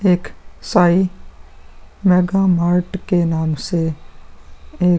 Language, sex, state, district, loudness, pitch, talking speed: Hindi, male, Bihar, Vaishali, -17 LUFS, 175 Hz, 110 wpm